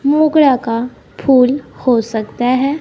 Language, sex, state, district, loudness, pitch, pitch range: Hindi, female, Bihar, West Champaran, -14 LUFS, 255 Hz, 240-280 Hz